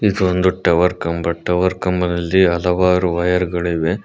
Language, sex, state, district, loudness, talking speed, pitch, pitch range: Kannada, male, Karnataka, Koppal, -17 LUFS, 135 wpm, 90 Hz, 85-90 Hz